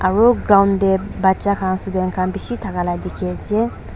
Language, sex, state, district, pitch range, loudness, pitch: Nagamese, female, Nagaland, Dimapur, 185-200 Hz, -18 LUFS, 190 Hz